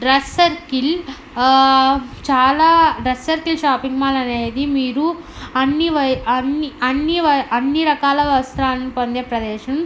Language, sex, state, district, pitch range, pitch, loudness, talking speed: Telugu, female, Andhra Pradesh, Anantapur, 255-305 Hz, 270 Hz, -17 LUFS, 95 wpm